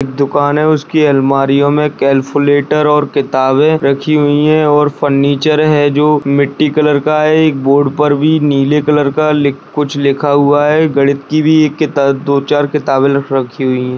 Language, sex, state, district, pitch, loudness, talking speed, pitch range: Hindi, male, Bihar, Jamui, 145 Hz, -11 LUFS, 180 wpm, 140-150 Hz